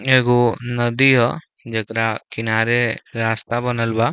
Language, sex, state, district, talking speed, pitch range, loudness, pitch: Bhojpuri, male, Uttar Pradesh, Deoria, 115 wpm, 115-120 Hz, -19 LUFS, 120 Hz